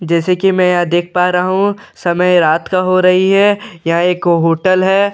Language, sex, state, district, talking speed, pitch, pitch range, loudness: Hindi, male, Bihar, Katihar, 245 wpm, 180 Hz, 175-190 Hz, -13 LUFS